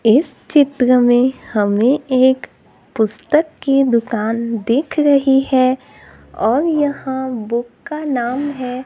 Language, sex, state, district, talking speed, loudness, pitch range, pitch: Hindi, female, Maharashtra, Gondia, 115 wpm, -16 LUFS, 235-280 Hz, 260 Hz